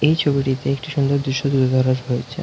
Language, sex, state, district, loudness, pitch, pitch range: Bengali, male, West Bengal, North 24 Parganas, -19 LUFS, 135 Hz, 130-145 Hz